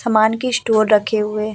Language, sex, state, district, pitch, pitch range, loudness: Hindi, female, Uttar Pradesh, Budaun, 220 Hz, 215-225 Hz, -17 LUFS